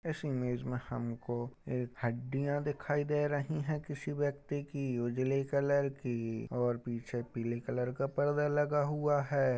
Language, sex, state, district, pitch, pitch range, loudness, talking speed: Hindi, male, Uttar Pradesh, Budaun, 135 Hz, 120-145 Hz, -35 LUFS, 155 wpm